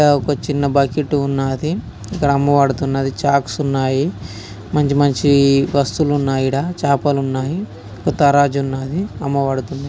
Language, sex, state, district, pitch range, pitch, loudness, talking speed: Telugu, male, Telangana, Karimnagar, 135-145 Hz, 140 Hz, -17 LUFS, 110 wpm